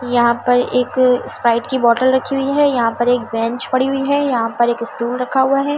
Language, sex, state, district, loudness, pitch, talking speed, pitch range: Hindi, female, Delhi, New Delhi, -16 LUFS, 250 Hz, 250 wpm, 235-265 Hz